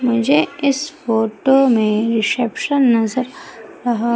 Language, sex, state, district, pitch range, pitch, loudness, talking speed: Hindi, female, Madhya Pradesh, Umaria, 225-275 Hz, 245 Hz, -17 LUFS, 100 wpm